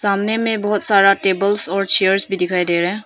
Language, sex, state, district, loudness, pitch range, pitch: Hindi, female, Arunachal Pradesh, Papum Pare, -16 LUFS, 190-205 Hz, 195 Hz